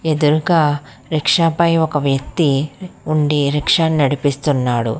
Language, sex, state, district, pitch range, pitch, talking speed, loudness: Telugu, female, Telangana, Hyderabad, 140-160 Hz, 150 Hz, 110 wpm, -16 LUFS